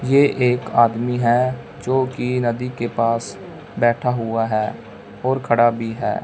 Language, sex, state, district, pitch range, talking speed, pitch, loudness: Hindi, male, Punjab, Fazilka, 115-125 Hz, 155 wpm, 120 Hz, -20 LUFS